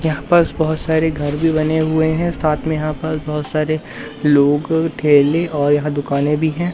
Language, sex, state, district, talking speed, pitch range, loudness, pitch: Hindi, male, Madhya Pradesh, Katni, 195 wpm, 150-160 Hz, -17 LUFS, 155 Hz